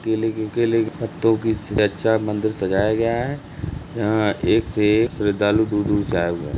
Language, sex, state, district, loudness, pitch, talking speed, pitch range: Hindi, male, Uttar Pradesh, Jalaun, -21 LUFS, 110 Hz, 200 wpm, 105-115 Hz